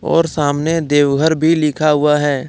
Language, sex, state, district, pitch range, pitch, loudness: Hindi, male, Jharkhand, Deoghar, 145-160 Hz, 150 Hz, -14 LUFS